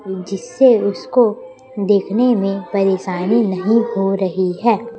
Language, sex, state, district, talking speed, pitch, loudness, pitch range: Hindi, female, Chhattisgarh, Raipur, 110 wpm, 200 Hz, -16 LUFS, 195-235 Hz